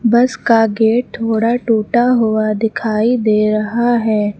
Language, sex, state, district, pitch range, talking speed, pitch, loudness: Hindi, female, Uttar Pradesh, Lucknow, 215-240 Hz, 135 wpm, 225 Hz, -14 LUFS